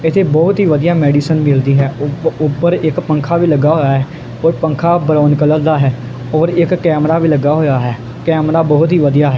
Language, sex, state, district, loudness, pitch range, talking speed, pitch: Punjabi, male, Punjab, Kapurthala, -13 LUFS, 145-165 Hz, 200 wpm, 155 Hz